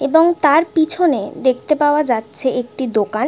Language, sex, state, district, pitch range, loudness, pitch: Bengali, female, West Bengal, Jhargram, 250-315 Hz, -16 LUFS, 280 Hz